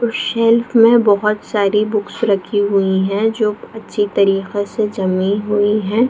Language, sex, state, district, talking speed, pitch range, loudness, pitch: Hindi, female, Bihar, Jahanabad, 155 wpm, 200-220 Hz, -16 LUFS, 210 Hz